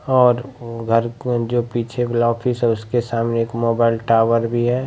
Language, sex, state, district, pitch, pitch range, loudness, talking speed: Maithili, male, Bihar, Bhagalpur, 120 Hz, 115-120 Hz, -19 LUFS, 170 wpm